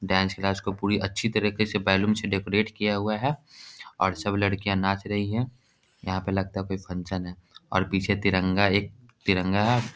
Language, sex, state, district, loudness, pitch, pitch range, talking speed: Hindi, male, Bihar, Jahanabad, -26 LUFS, 100 Hz, 95-105 Hz, 190 wpm